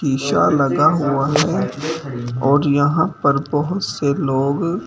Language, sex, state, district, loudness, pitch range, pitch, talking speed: Hindi, male, Delhi, New Delhi, -18 LUFS, 140-160 Hz, 145 Hz, 135 wpm